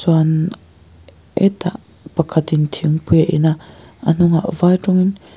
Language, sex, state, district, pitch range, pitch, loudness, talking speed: Mizo, female, Mizoram, Aizawl, 155-180 Hz, 160 Hz, -17 LUFS, 125 wpm